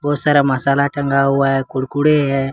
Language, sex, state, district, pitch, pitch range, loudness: Hindi, male, Jharkhand, Ranchi, 140 Hz, 135-145 Hz, -16 LUFS